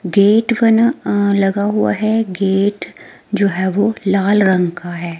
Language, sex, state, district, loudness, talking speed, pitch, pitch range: Hindi, female, Himachal Pradesh, Shimla, -15 LUFS, 160 wpm, 200 Hz, 190-215 Hz